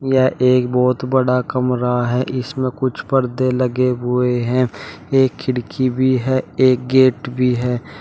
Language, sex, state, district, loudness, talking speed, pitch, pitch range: Hindi, male, Uttar Pradesh, Shamli, -17 LUFS, 150 wpm, 125 Hz, 125-130 Hz